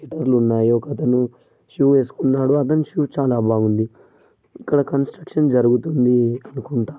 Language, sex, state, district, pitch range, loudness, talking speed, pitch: Telugu, male, Telangana, Karimnagar, 120-145 Hz, -19 LUFS, 105 wpm, 130 Hz